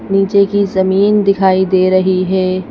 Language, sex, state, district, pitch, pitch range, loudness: Hindi, female, Madhya Pradesh, Bhopal, 190 Hz, 185-200 Hz, -12 LUFS